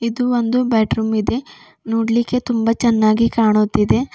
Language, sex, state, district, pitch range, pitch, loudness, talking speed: Kannada, female, Karnataka, Bidar, 220-245 Hz, 230 Hz, -17 LUFS, 115 wpm